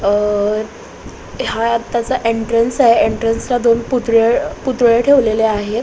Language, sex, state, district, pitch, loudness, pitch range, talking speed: Marathi, female, Maharashtra, Solapur, 230 Hz, -15 LUFS, 220-240 Hz, 125 wpm